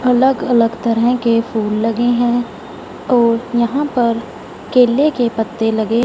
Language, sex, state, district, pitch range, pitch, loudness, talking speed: Hindi, female, Punjab, Fazilka, 230-245 Hz, 240 Hz, -15 LUFS, 140 wpm